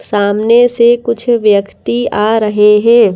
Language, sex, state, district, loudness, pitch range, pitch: Hindi, female, Madhya Pradesh, Bhopal, -10 LUFS, 210-235 Hz, 215 Hz